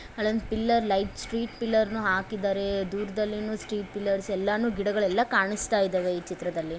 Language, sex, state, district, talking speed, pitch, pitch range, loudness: Kannada, female, Karnataka, Bellary, 140 wpm, 205 Hz, 195-220 Hz, -27 LUFS